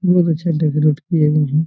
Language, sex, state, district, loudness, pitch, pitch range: Hindi, male, Jharkhand, Jamtara, -16 LUFS, 155 Hz, 150-170 Hz